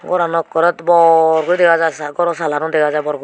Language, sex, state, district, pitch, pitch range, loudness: Chakma, female, Tripura, Unakoti, 165 Hz, 155-170 Hz, -14 LUFS